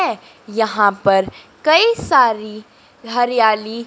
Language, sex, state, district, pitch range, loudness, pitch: Hindi, female, Madhya Pradesh, Dhar, 210-235 Hz, -16 LUFS, 220 Hz